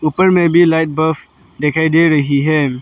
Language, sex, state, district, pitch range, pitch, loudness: Hindi, male, Arunachal Pradesh, Lower Dibang Valley, 150-165 Hz, 160 Hz, -13 LUFS